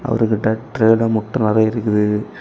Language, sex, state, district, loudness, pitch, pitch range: Tamil, male, Tamil Nadu, Kanyakumari, -17 LUFS, 110 Hz, 110-115 Hz